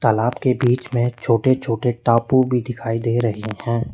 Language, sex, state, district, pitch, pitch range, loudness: Hindi, male, Uttar Pradesh, Lalitpur, 120 Hz, 115-125 Hz, -19 LUFS